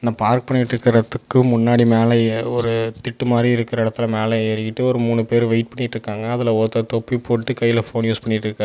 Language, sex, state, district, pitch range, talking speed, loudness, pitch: Tamil, male, Tamil Nadu, Namakkal, 115-120 Hz, 165 wpm, -18 LUFS, 115 Hz